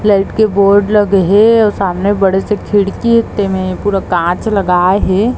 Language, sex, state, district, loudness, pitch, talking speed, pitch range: Chhattisgarhi, female, Chhattisgarh, Bilaspur, -12 LUFS, 200 Hz, 180 wpm, 190-210 Hz